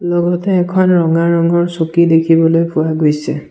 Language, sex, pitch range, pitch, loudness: Assamese, male, 165-175 Hz, 170 Hz, -13 LUFS